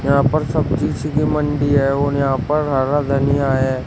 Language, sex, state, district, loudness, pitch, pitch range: Hindi, male, Uttar Pradesh, Shamli, -17 LUFS, 140 Hz, 135-150 Hz